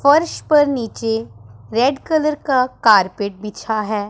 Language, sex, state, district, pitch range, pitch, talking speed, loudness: Hindi, female, Punjab, Pathankot, 205-280 Hz, 225 Hz, 130 wpm, -17 LUFS